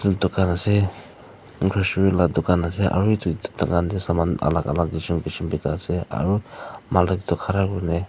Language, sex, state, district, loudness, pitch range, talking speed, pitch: Nagamese, female, Nagaland, Dimapur, -22 LUFS, 85-95 Hz, 155 wpm, 90 Hz